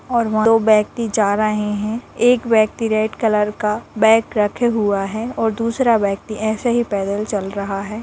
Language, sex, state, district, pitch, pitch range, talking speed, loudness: Hindi, female, Bihar, Saran, 215 Hz, 210-230 Hz, 185 wpm, -18 LUFS